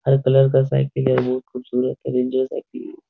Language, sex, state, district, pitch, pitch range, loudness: Hindi, male, Bihar, Jahanabad, 130 Hz, 125-135 Hz, -20 LUFS